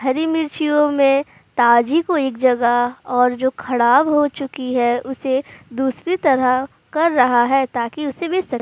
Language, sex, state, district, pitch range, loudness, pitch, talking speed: Hindi, female, Uttar Pradesh, Jalaun, 250-295 Hz, -18 LUFS, 265 Hz, 165 wpm